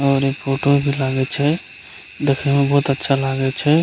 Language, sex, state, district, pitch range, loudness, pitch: Maithili, male, Bihar, Begusarai, 135-140 Hz, -18 LUFS, 140 Hz